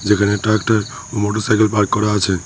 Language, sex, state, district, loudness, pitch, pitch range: Bengali, male, West Bengal, Cooch Behar, -17 LUFS, 105 Hz, 105-110 Hz